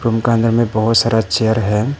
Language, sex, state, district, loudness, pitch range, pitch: Hindi, male, Arunachal Pradesh, Papum Pare, -15 LUFS, 110-115 Hz, 115 Hz